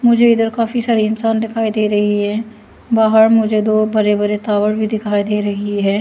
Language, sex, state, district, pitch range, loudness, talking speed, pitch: Hindi, female, Arunachal Pradesh, Lower Dibang Valley, 210-225 Hz, -15 LUFS, 190 wpm, 215 Hz